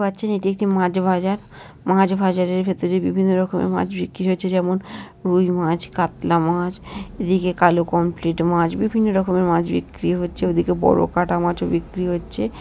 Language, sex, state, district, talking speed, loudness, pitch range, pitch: Bengali, female, West Bengal, Jhargram, 155 wpm, -20 LUFS, 170-190 Hz, 180 Hz